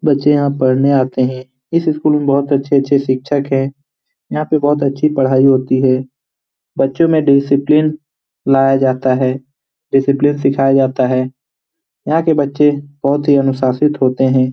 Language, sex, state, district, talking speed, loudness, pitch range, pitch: Hindi, male, Bihar, Lakhisarai, 165 wpm, -14 LUFS, 130-145 Hz, 140 Hz